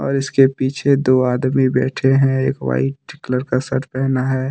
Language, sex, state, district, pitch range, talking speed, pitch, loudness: Hindi, male, Jharkhand, Deoghar, 130-135 Hz, 200 wpm, 130 Hz, -17 LUFS